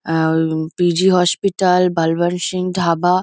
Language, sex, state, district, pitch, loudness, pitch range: Bengali, female, West Bengal, Kolkata, 175 Hz, -16 LUFS, 165-185 Hz